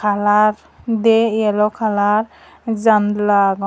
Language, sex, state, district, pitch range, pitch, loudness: Chakma, female, Tripura, Dhalai, 205-220 Hz, 210 Hz, -16 LUFS